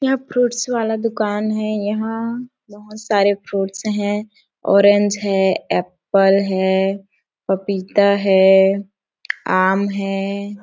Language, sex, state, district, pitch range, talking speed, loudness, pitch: Hindi, female, Chhattisgarh, Sarguja, 195-215 Hz, 105 wpm, -18 LUFS, 200 Hz